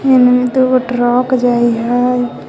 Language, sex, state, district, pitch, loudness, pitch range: Magahi, female, Jharkhand, Palamu, 250 Hz, -12 LUFS, 245-255 Hz